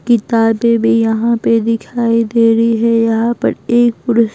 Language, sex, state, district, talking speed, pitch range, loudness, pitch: Hindi, female, Bihar, Patna, 180 wpm, 225-235 Hz, -13 LUFS, 230 Hz